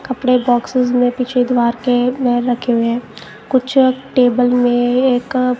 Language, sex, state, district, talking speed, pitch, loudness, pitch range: Hindi, female, Punjab, Kapurthala, 150 wpm, 245 Hz, -15 LUFS, 245-255 Hz